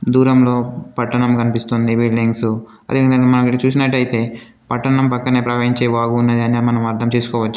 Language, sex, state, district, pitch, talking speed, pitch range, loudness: Telugu, male, Telangana, Komaram Bheem, 120 Hz, 140 wpm, 115-125 Hz, -16 LUFS